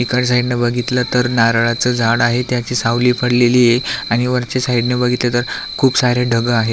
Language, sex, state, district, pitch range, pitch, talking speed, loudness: Marathi, male, Maharashtra, Aurangabad, 120-125 Hz, 125 Hz, 170 wpm, -15 LUFS